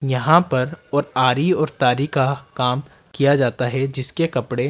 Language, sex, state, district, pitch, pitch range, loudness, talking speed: Hindi, male, Rajasthan, Jaipur, 135 Hz, 125-145 Hz, -19 LUFS, 165 wpm